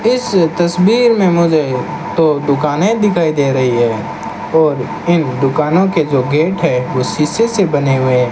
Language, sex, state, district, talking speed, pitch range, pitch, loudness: Hindi, male, Rajasthan, Bikaner, 165 wpm, 135-180 Hz, 155 Hz, -13 LUFS